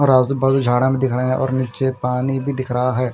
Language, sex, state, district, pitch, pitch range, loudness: Hindi, male, Punjab, Fazilka, 130 Hz, 125-135 Hz, -19 LUFS